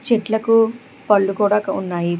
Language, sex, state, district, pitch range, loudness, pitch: Telugu, female, Telangana, Hyderabad, 195-225 Hz, -18 LUFS, 210 Hz